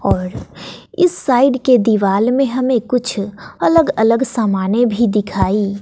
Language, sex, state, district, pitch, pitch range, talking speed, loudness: Hindi, female, Bihar, West Champaran, 235 Hz, 205-260 Hz, 135 wpm, -15 LUFS